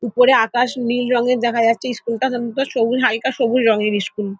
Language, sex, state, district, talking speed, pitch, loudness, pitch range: Bengali, female, West Bengal, Dakshin Dinajpur, 205 wpm, 240 Hz, -18 LUFS, 230-250 Hz